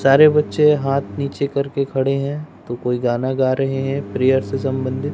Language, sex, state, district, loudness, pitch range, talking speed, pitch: Hindi, male, Bihar, West Champaran, -19 LUFS, 130-140 Hz, 185 wpm, 135 Hz